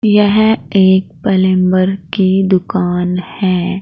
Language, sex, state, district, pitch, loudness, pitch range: Hindi, female, Uttar Pradesh, Saharanpur, 190 Hz, -13 LUFS, 185-195 Hz